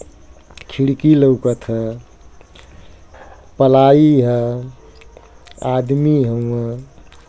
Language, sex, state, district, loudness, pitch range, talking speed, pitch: Bhojpuri, male, Uttar Pradesh, Ghazipur, -15 LUFS, 85-135 Hz, 65 wpm, 120 Hz